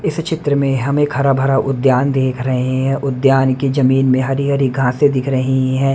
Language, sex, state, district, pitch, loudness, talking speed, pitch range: Hindi, male, Haryana, Rohtak, 135 Hz, -15 LUFS, 210 wpm, 130-140 Hz